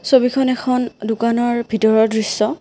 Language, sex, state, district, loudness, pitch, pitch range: Assamese, female, Assam, Kamrup Metropolitan, -17 LUFS, 235 Hz, 220-250 Hz